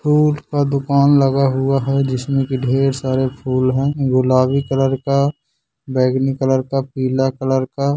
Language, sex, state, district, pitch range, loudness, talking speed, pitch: Hindi, male, Bihar, Gaya, 130-140 Hz, -17 LUFS, 165 wpm, 135 Hz